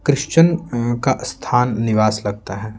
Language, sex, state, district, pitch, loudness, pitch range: Hindi, male, Bihar, Patna, 120 Hz, -18 LUFS, 110-140 Hz